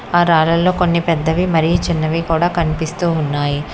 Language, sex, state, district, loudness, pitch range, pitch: Telugu, female, Telangana, Hyderabad, -16 LUFS, 160-175 Hz, 165 Hz